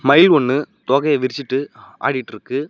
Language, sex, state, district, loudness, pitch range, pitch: Tamil, male, Tamil Nadu, Namakkal, -18 LUFS, 130-140 Hz, 135 Hz